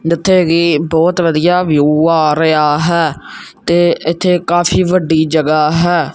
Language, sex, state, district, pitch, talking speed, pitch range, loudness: Punjabi, male, Punjab, Kapurthala, 165 Hz, 135 wpm, 155-175 Hz, -12 LUFS